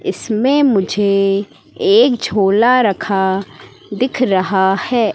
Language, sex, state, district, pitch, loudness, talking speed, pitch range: Hindi, female, Madhya Pradesh, Katni, 205 Hz, -14 LUFS, 95 wpm, 195-250 Hz